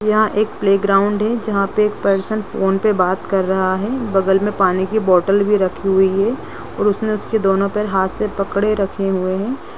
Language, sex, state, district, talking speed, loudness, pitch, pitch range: Hindi, female, Bihar, Gopalganj, 215 wpm, -17 LUFS, 200 Hz, 195-215 Hz